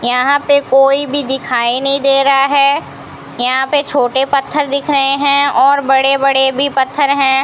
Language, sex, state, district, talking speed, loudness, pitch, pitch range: Hindi, female, Rajasthan, Bikaner, 175 wpm, -12 LUFS, 275 Hz, 265-280 Hz